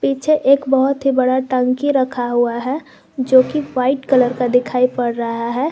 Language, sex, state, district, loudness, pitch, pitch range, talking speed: Hindi, female, Jharkhand, Garhwa, -16 LUFS, 255 Hz, 250-275 Hz, 180 wpm